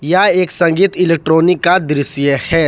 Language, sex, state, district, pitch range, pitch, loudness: Hindi, male, Jharkhand, Ranchi, 155-185 Hz, 170 Hz, -13 LUFS